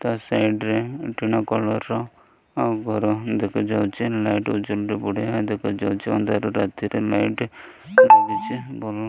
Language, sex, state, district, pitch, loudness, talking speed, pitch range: Odia, male, Odisha, Malkangiri, 110 Hz, -22 LUFS, 105 wpm, 105-115 Hz